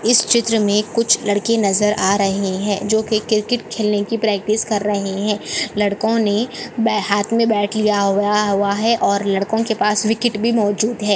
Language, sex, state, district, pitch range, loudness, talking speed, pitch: Hindi, female, Maharashtra, Nagpur, 205-225 Hz, -17 LUFS, 195 wpm, 210 Hz